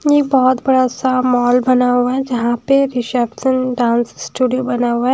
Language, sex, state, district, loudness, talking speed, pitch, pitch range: Hindi, female, Bihar, Patna, -15 LUFS, 200 wpm, 255 Hz, 245-260 Hz